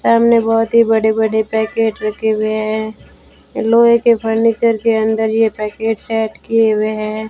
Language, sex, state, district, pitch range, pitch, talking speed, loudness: Hindi, female, Rajasthan, Bikaner, 220-225 Hz, 220 Hz, 165 wpm, -15 LUFS